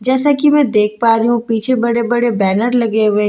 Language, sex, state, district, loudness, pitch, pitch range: Hindi, female, Bihar, Katihar, -14 LUFS, 235 Hz, 220-245 Hz